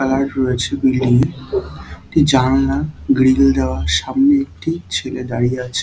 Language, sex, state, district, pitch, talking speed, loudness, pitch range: Bengali, male, West Bengal, Dakshin Dinajpur, 130 Hz, 135 wpm, -16 LUFS, 125-140 Hz